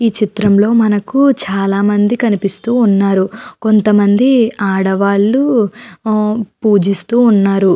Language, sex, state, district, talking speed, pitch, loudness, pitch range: Telugu, female, Andhra Pradesh, Chittoor, 100 wpm, 210 Hz, -12 LUFS, 200-230 Hz